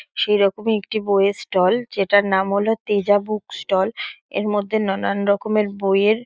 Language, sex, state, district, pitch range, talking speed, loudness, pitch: Bengali, female, West Bengal, Dakshin Dinajpur, 200-215 Hz, 180 wpm, -20 LUFS, 205 Hz